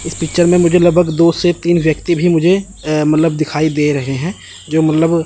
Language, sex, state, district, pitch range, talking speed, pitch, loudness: Hindi, male, Chandigarh, Chandigarh, 155-175 Hz, 205 wpm, 165 Hz, -13 LUFS